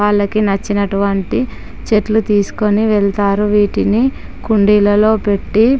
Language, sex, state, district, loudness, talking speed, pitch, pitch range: Telugu, female, Andhra Pradesh, Chittoor, -14 LUFS, 85 wpm, 210 Hz, 205-220 Hz